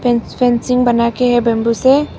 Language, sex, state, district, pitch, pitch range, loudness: Hindi, female, Arunachal Pradesh, Papum Pare, 245 Hz, 235-250 Hz, -14 LUFS